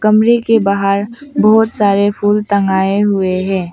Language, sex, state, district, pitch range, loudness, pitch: Hindi, female, Arunachal Pradesh, Papum Pare, 195-215 Hz, -13 LUFS, 205 Hz